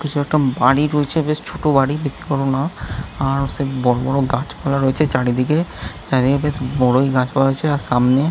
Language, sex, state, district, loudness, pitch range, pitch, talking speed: Bengali, male, West Bengal, Jhargram, -18 LUFS, 130-145 Hz, 135 Hz, 160 wpm